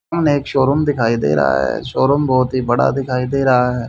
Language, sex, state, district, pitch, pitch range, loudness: Hindi, male, Haryana, Rohtak, 130 Hz, 125-140 Hz, -16 LUFS